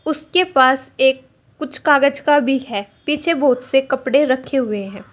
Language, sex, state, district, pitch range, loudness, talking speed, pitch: Hindi, female, Uttar Pradesh, Saharanpur, 260-295 Hz, -17 LUFS, 175 wpm, 270 Hz